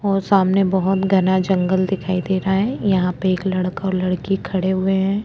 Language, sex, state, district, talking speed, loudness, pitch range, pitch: Hindi, female, Chhattisgarh, Korba, 205 wpm, -19 LUFS, 185-195 Hz, 190 Hz